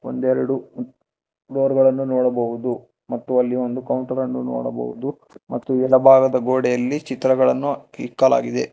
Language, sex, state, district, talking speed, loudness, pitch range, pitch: Kannada, male, Karnataka, Bangalore, 105 wpm, -19 LUFS, 125-130 Hz, 130 Hz